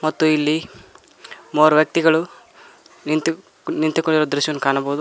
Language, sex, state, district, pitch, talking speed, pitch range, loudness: Kannada, male, Karnataka, Koppal, 155 Hz, 95 wpm, 150-165 Hz, -19 LUFS